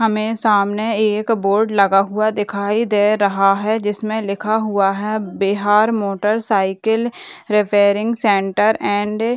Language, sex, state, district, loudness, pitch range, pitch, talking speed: Hindi, female, Bihar, Muzaffarpur, -17 LUFS, 200-220 Hz, 210 Hz, 135 wpm